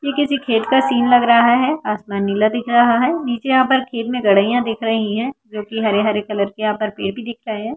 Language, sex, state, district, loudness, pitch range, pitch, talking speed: Bhojpuri, female, Bihar, Saran, -17 LUFS, 215-250 Hz, 230 Hz, 255 wpm